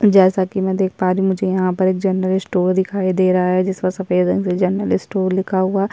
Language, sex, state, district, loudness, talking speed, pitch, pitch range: Hindi, female, Uttarakhand, Tehri Garhwal, -17 LUFS, 265 wpm, 190 Hz, 185-190 Hz